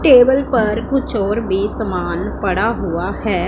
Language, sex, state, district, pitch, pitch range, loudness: Hindi, female, Punjab, Pathankot, 230 Hz, 210-270 Hz, -17 LUFS